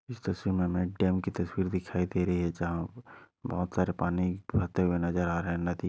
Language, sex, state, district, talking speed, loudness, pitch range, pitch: Hindi, male, Maharashtra, Aurangabad, 235 wpm, -31 LUFS, 85-95 Hz, 90 Hz